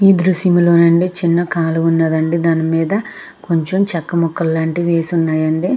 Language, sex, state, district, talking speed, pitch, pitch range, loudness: Telugu, female, Andhra Pradesh, Krishna, 145 wpm, 170 Hz, 165-175 Hz, -15 LUFS